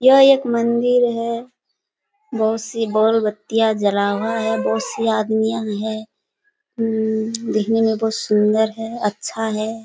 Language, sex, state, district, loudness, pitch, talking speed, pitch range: Hindi, female, Bihar, Kishanganj, -19 LUFS, 225 Hz, 140 wpm, 220-235 Hz